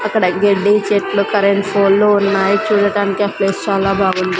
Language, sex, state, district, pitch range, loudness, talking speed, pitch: Telugu, female, Andhra Pradesh, Sri Satya Sai, 195-205 Hz, -14 LUFS, 150 wpm, 200 Hz